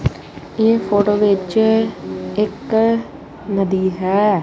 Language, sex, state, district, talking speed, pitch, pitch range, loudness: Punjabi, male, Punjab, Kapurthala, 80 wpm, 205 Hz, 185-220 Hz, -17 LUFS